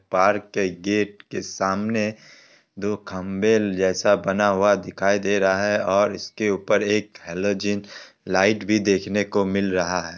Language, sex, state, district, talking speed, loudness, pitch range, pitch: Hindi, male, Bihar, Kishanganj, 155 wpm, -22 LUFS, 95-105 Hz, 100 Hz